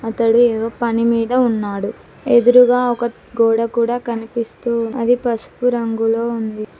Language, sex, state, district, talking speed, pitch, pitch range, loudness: Telugu, female, Telangana, Mahabubabad, 115 wpm, 235 Hz, 225-240 Hz, -17 LUFS